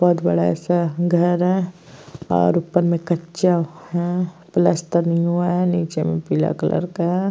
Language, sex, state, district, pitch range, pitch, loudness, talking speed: Hindi, female, Uttar Pradesh, Jyotiba Phule Nagar, 160-175 Hz, 170 Hz, -20 LUFS, 165 wpm